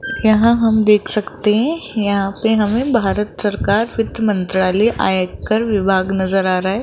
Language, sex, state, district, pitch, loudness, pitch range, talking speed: Hindi, female, Rajasthan, Jaipur, 210 Hz, -16 LUFS, 195-225 Hz, 160 wpm